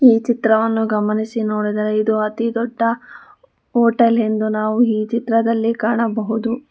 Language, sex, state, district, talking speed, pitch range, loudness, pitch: Kannada, female, Karnataka, Bangalore, 115 wpm, 215-235 Hz, -18 LUFS, 225 Hz